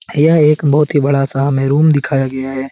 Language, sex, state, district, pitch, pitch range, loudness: Hindi, male, Bihar, Jahanabad, 140 Hz, 135-150 Hz, -13 LUFS